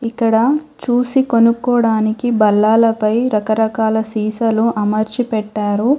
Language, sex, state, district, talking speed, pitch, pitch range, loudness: Telugu, female, Telangana, Hyderabad, 80 wpm, 225 Hz, 215-240 Hz, -15 LUFS